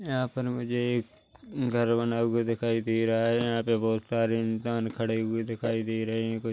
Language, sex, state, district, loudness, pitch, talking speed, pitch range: Hindi, male, Chhattisgarh, Korba, -28 LUFS, 115 Hz, 210 wpm, 115-120 Hz